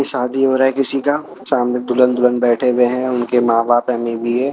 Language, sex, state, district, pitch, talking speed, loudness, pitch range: Hindi, male, Chhattisgarh, Raipur, 125 Hz, 225 wpm, -16 LUFS, 120-130 Hz